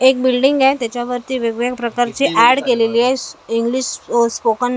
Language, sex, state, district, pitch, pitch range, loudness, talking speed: Marathi, female, Maharashtra, Mumbai Suburban, 245 Hz, 235-260 Hz, -16 LUFS, 165 wpm